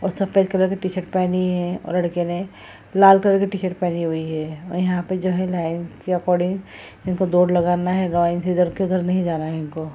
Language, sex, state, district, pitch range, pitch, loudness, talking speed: Hindi, female, Bihar, Jahanabad, 175-185 Hz, 180 Hz, -21 LUFS, 200 wpm